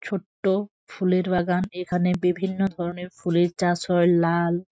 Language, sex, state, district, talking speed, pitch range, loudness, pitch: Bengali, female, West Bengal, Jhargram, 125 wpm, 175-190 Hz, -24 LUFS, 180 Hz